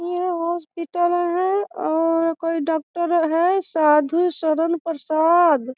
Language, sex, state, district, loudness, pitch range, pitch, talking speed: Hindi, female, Bihar, Sitamarhi, -20 LUFS, 320-350 Hz, 335 Hz, 105 wpm